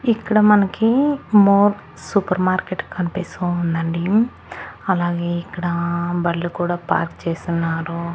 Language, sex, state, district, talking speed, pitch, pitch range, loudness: Telugu, female, Andhra Pradesh, Annamaya, 95 wpm, 175 Hz, 170-200 Hz, -19 LUFS